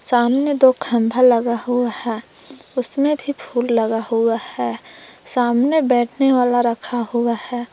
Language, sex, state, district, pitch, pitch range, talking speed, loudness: Hindi, female, Jharkhand, Palamu, 240 Hz, 235-255 Hz, 140 wpm, -18 LUFS